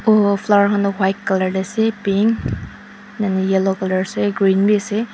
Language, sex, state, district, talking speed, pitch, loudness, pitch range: Nagamese, female, Mizoram, Aizawl, 185 wpm, 200 Hz, -18 LUFS, 190-210 Hz